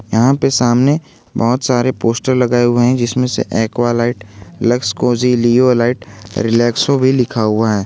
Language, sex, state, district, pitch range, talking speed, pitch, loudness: Hindi, male, Jharkhand, Garhwa, 115-125 Hz, 155 wpm, 120 Hz, -14 LUFS